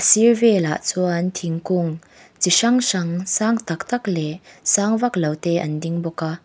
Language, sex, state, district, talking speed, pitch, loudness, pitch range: Mizo, female, Mizoram, Aizawl, 175 wpm, 180 Hz, -20 LUFS, 165-215 Hz